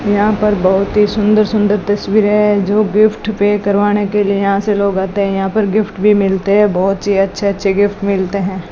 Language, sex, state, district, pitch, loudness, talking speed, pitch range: Hindi, female, Rajasthan, Bikaner, 205 Hz, -13 LUFS, 225 wpm, 195-210 Hz